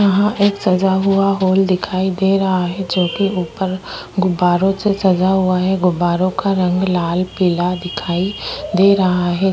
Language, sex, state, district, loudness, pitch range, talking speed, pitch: Hindi, female, Bihar, Vaishali, -16 LUFS, 180-195 Hz, 155 wpm, 185 Hz